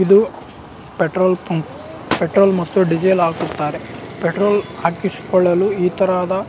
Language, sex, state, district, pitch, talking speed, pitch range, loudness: Kannada, male, Karnataka, Raichur, 185 Hz, 100 wpm, 170-195 Hz, -17 LUFS